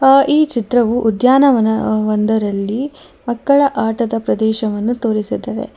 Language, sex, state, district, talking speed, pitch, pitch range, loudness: Kannada, female, Karnataka, Bangalore, 85 wpm, 230 Hz, 220-265 Hz, -15 LUFS